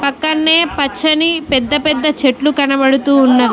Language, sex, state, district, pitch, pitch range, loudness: Telugu, female, Telangana, Mahabubabad, 290 Hz, 270-310 Hz, -13 LUFS